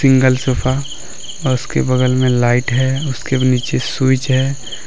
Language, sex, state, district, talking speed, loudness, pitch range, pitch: Hindi, male, Jharkhand, Deoghar, 150 wpm, -16 LUFS, 125-130 Hz, 130 Hz